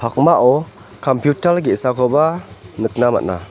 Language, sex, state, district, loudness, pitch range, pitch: Garo, male, Meghalaya, North Garo Hills, -16 LUFS, 100-145 Hz, 125 Hz